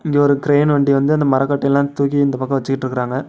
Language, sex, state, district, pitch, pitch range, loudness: Tamil, male, Tamil Nadu, Namakkal, 140 Hz, 135-145 Hz, -16 LUFS